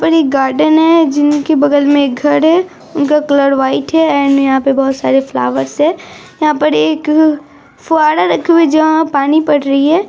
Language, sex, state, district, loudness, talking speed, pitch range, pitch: Hindi, female, Bihar, Araria, -11 LUFS, 195 wpm, 275-315 Hz, 295 Hz